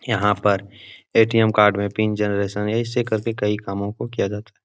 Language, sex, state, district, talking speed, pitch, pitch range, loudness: Hindi, male, Bihar, Supaul, 195 wpm, 105 Hz, 100-110 Hz, -21 LUFS